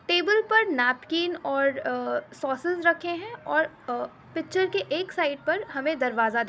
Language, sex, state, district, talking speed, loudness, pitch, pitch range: Hindi, female, Uttar Pradesh, Etah, 175 wpm, -26 LUFS, 325 Hz, 275-355 Hz